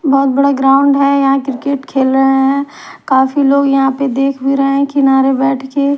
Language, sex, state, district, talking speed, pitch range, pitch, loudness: Hindi, female, Bihar, Patna, 170 wpm, 270-280 Hz, 275 Hz, -12 LUFS